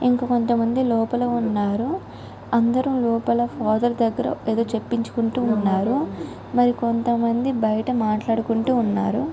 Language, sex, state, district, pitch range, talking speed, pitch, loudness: Telugu, female, Andhra Pradesh, Visakhapatnam, 225-245 Hz, 115 wpm, 235 Hz, -22 LUFS